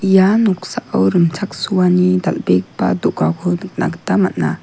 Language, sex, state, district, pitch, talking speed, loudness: Garo, female, Meghalaya, West Garo Hills, 180 Hz, 105 wpm, -16 LUFS